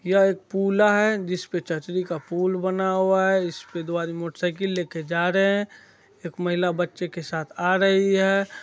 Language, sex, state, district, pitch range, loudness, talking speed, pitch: Maithili, male, Bihar, Supaul, 170-195 Hz, -23 LUFS, 195 wpm, 185 Hz